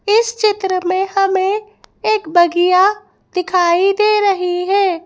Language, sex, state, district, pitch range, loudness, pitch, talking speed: Hindi, female, Madhya Pradesh, Bhopal, 365-415 Hz, -15 LUFS, 385 Hz, 120 wpm